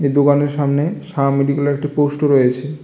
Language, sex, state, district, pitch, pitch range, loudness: Bengali, male, Tripura, West Tripura, 145 Hz, 140-145 Hz, -16 LUFS